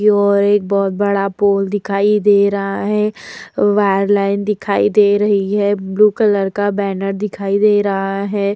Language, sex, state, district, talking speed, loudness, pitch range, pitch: Hindi, female, Uttar Pradesh, Hamirpur, 155 wpm, -15 LUFS, 195-205 Hz, 200 Hz